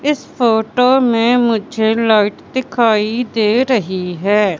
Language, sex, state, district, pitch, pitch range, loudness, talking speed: Hindi, female, Madhya Pradesh, Katni, 225 Hz, 210-245 Hz, -15 LUFS, 115 wpm